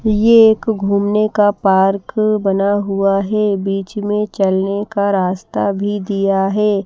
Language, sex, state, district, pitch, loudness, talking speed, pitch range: Hindi, female, Himachal Pradesh, Shimla, 200 Hz, -15 LUFS, 140 wpm, 195-210 Hz